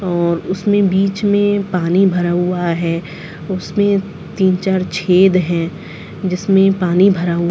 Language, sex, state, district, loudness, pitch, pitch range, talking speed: Hindi, female, Chhattisgarh, Sarguja, -15 LUFS, 185 Hz, 175-195 Hz, 145 wpm